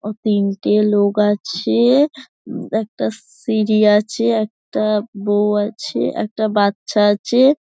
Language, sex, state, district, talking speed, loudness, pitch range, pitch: Bengali, female, West Bengal, Dakshin Dinajpur, 100 wpm, -17 LUFS, 205-225 Hz, 210 Hz